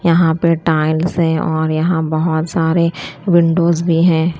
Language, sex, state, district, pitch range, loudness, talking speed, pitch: Hindi, female, Punjab, Kapurthala, 160-170 Hz, -15 LUFS, 150 wpm, 165 Hz